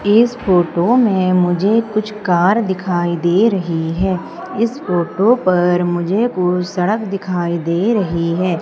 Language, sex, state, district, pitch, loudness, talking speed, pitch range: Hindi, female, Madhya Pradesh, Umaria, 185 Hz, -16 LUFS, 140 wpm, 175-215 Hz